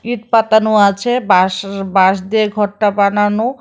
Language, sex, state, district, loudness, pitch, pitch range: Bengali, female, Tripura, West Tripura, -14 LUFS, 205 Hz, 195-220 Hz